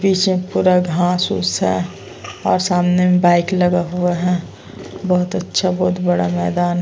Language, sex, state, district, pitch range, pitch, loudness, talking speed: Hindi, female, Uttarakhand, Tehri Garhwal, 175-180 Hz, 180 Hz, -17 LUFS, 150 wpm